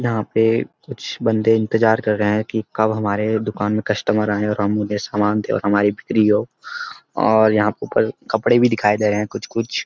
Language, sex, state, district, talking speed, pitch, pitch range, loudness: Hindi, male, Uttarakhand, Uttarkashi, 205 wpm, 105 Hz, 105-110 Hz, -19 LUFS